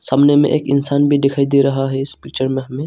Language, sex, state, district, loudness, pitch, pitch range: Hindi, male, Arunachal Pradesh, Longding, -15 LUFS, 140 Hz, 135-145 Hz